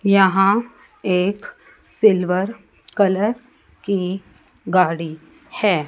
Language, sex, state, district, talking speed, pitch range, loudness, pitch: Hindi, female, Chandigarh, Chandigarh, 70 wpm, 185-215 Hz, -19 LUFS, 195 Hz